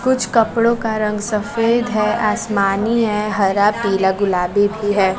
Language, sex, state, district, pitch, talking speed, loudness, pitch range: Hindi, female, Bihar, West Champaran, 210 Hz, 150 wpm, -17 LUFS, 200-230 Hz